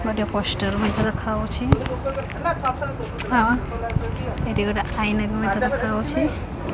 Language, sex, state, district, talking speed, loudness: Odia, female, Odisha, Khordha, 90 wpm, -23 LUFS